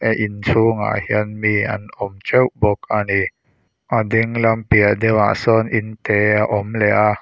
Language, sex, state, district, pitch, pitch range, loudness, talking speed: Mizo, male, Mizoram, Aizawl, 105 Hz, 105-110 Hz, -17 LUFS, 190 wpm